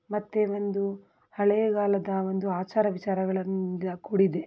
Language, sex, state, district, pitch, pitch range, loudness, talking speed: Kannada, female, Karnataka, Belgaum, 195 Hz, 190-205 Hz, -28 LUFS, 110 wpm